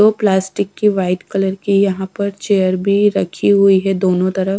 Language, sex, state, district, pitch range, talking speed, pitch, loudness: Hindi, female, Bihar, Katihar, 190-200 Hz, 195 wpm, 195 Hz, -15 LUFS